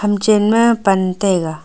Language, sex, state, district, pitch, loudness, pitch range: Wancho, female, Arunachal Pradesh, Longding, 205 Hz, -14 LUFS, 185-215 Hz